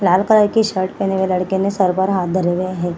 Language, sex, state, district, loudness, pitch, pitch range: Hindi, female, Bihar, Gaya, -17 LUFS, 185 Hz, 185-195 Hz